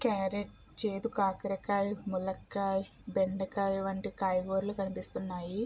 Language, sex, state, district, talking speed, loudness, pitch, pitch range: Telugu, female, Andhra Pradesh, Chittoor, 95 wpm, -34 LUFS, 195 Hz, 190-205 Hz